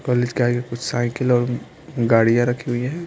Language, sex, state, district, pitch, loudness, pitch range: Hindi, male, Bihar, Patna, 120 Hz, -20 LUFS, 120-125 Hz